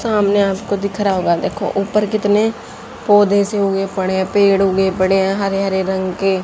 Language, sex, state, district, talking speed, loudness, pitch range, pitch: Hindi, female, Haryana, Jhajjar, 195 wpm, -16 LUFS, 190-205 Hz, 195 Hz